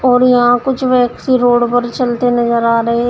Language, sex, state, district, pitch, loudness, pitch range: Hindi, female, Uttar Pradesh, Shamli, 245 Hz, -13 LUFS, 240-250 Hz